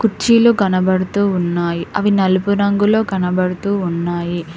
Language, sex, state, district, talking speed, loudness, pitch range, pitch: Telugu, female, Telangana, Hyderabad, 105 wpm, -16 LUFS, 175-200 Hz, 190 Hz